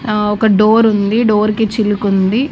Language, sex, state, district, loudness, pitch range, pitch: Telugu, female, Andhra Pradesh, Annamaya, -13 LUFS, 205-225 Hz, 215 Hz